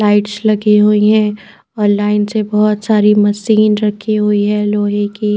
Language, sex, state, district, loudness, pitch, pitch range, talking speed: Hindi, female, Chandigarh, Chandigarh, -13 LUFS, 210 Hz, 210-215 Hz, 165 wpm